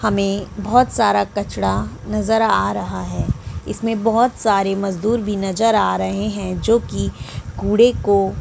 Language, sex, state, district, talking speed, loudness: Hindi, female, Chhattisgarh, Bilaspur, 150 wpm, -19 LUFS